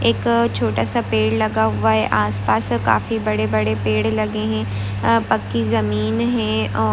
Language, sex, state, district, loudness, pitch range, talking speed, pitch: Hindi, female, Maharashtra, Pune, -19 LUFS, 105-115 Hz, 165 wpm, 110 Hz